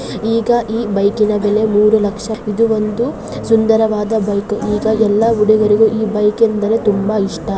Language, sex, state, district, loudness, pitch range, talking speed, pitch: Kannada, female, Karnataka, Bijapur, -14 LUFS, 210-220 Hz, 160 wpm, 215 Hz